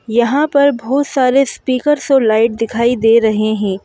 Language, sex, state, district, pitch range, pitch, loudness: Hindi, female, Madhya Pradesh, Bhopal, 225-275 Hz, 240 Hz, -14 LUFS